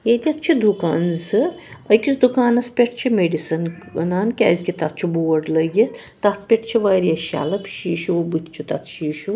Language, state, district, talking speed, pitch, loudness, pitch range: Kashmiri, Punjab, Kapurthala, 145 wpm, 185 Hz, -19 LUFS, 165-230 Hz